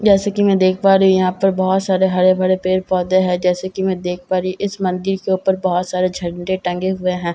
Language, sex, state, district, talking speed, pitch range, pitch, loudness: Hindi, female, Bihar, Katihar, 295 wpm, 180-190 Hz, 185 Hz, -17 LUFS